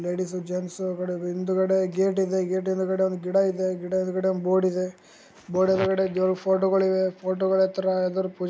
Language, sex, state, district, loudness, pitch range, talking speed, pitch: Kannada, male, Karnataka, Gulbarga, -25 LUFS, 185-190 Hz, 175 wpm, 185 Hz